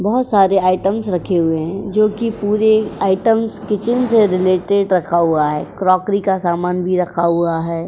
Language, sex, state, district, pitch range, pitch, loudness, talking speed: Hindi, female, Uttar Pradesh, Jyotiba Phule Nagar, 175-210 Hz, 190 Hz, -16 LUFS, 175 wpm